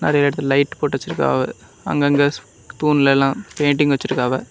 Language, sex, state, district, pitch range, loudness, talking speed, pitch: Tamil, male, Tamil Nadu, Kanyakumari, 135-145 Hz, -18 LUFS, 135 wpm, 140 Hz